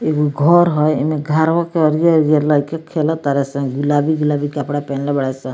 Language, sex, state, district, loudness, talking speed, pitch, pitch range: Bhojpuri, female, Bihar, Muzaffarpur, -16 LUFS, 175 wpm, 150 Hz, 145-160 Hz